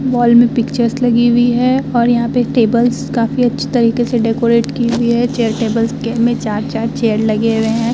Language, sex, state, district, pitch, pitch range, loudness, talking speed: Hindi, female, Uttar Pradesh, Muzaffarnagar, 235 Hz, 230-240 Hz, -14 LUFS, 205 wpm